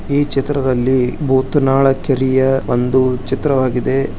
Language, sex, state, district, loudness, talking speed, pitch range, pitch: Kannada, male, Karnataka, Bijapur, -15 LUFS, 85 wpm, 130-135 Hz, 135 Hz